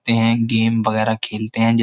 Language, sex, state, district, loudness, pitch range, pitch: Hindi, male, Uttar Pradesh, Jyotiba Phule Nagar, -18 LUFS, 110-115 Hz, 115 Hz